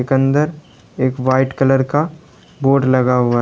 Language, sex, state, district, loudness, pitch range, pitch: Hindi, male, Uttar Pradesh, Lalitpur, -16 LUFS, 130-145 Hz, 135 Hz